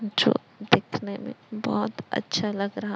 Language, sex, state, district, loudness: Hindi, male, Chhattisgarh, Raipur, -27 LUFS